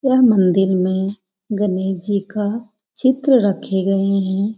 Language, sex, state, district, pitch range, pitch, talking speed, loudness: Hindi, female, Bihar, Jamui, 190-220 Hz, 200 Hz, 130 wpm, -18 LUFS